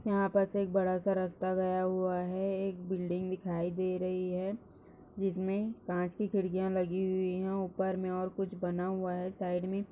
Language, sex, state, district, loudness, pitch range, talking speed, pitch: Hindi, female, Chhattisgarh, Rajnandgaon, -34 LUFS, 185-195 Hz, 185 wpm, 185 Hz